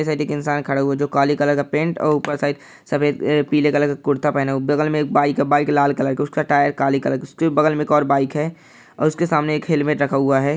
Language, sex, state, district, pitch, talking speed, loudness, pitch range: Hindi, male, Bihar, Saharsa, 145 Hz, 285 wpm, -19 LUFS, 140-150 Hz